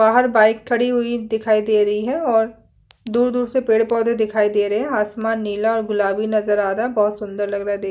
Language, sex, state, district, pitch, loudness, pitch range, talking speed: Hindi, female, Chhattisgarh, Sukma, 220 Hz, -19 LUFS, 210-230 Hz, 220 wpm